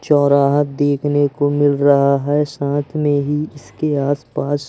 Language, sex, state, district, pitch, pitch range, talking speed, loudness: Hindi, male, Madhya Pradesh, Umaria, 145 Hz, 140-145 Hz, 140 wpm, -17 LUFS